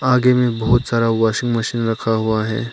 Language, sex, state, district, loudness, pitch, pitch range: Hindi, male, Arunachal Pradesh, Papum Pare, -18 LUFS, 115 Hz, 110-120 Hz